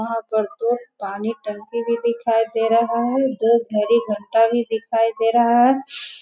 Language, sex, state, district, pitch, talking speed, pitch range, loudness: Hindi, female, Bihar, Sitamarhi, 230 Hz, 175 wpm, 225-235 Hz, -20 LUFS